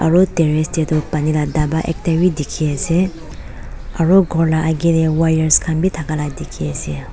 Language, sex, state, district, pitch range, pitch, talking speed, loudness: Nagamese, female, Nagaland, Dimapur, 150-165 Hz, 160 Hz, 185 wpm, -17 LUFS